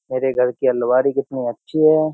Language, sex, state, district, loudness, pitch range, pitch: Hindi, male, Uttar Pradesh, Jyotiba Phule Nagar, -19 LUFS, 125-140 Hz, 130 Hz